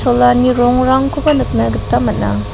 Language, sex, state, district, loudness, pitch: Garo, female, Meghalaya, South Garo Hills, -13 LUFS, 245 Hz